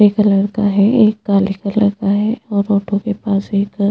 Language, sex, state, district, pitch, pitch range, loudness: Hindi, female, Chhattisgarh, Jashpur, 205 Hz, 200-210 Hz, -15 LUFS